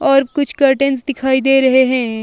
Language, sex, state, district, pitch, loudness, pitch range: Hindi, female, Himachal Pradesh, Shimla, 270 Hz, -14 LUFS, 260-275 Hz